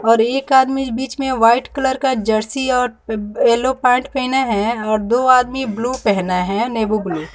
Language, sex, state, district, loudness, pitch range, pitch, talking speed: Hindi, female, Bihar, West Champaran, -17 LUFS, 220-260 Hz, 245 Hz, 190 wpm